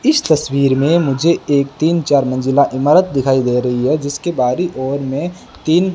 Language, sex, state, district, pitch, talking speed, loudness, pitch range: Hindi, male, Rajasthan, Bikaner, 140 Hz, 180 wpm, -15 LUFS, 135-170 Hz